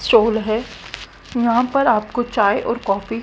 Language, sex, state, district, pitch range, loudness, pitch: Hindi, female, Haryana, Jhajjar, 215-240 Hz, -18 LUFS, 225 Hz